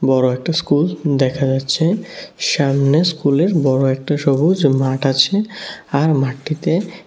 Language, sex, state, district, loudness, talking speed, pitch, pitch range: Bengali, male, Tripura, West Tripura, -17 LUFS, 125 wpm, 145 Hz, 135-165 Hz